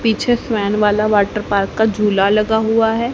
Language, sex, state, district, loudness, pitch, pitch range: Hindi, female, Haryana, Rohtak, -16 LUFS, 215 Hz, 210-225 Hz